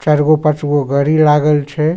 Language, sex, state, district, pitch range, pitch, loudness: Maithili, male, Bihar, Supaul, 145-155 Hz, 150 Hz, -13 LUFS